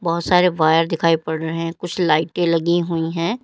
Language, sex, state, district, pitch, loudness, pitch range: Hindi, female, Uttar Pradesh, Lalitpur, 165 Hz, -19 LUFS, 165-175 Hz